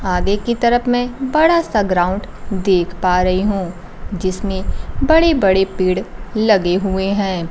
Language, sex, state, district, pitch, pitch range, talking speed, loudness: Hindi, female, Bihar, Kaimur, 195 Hz, 185-235 Hz, 145 wpm, -17 LUFS